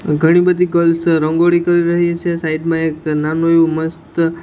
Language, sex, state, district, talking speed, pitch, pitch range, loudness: Gujarati, male, Gujarat, Gandhinagar, 190 wpm, 165 Hz, 160-170 Hz, -15 LUFS